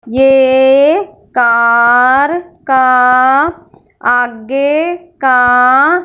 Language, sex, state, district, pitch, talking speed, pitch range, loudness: Hindi, female, Punjab, Fazilka, 265 Hz, 50 wpm, 245-290 Hz, -10 LUFS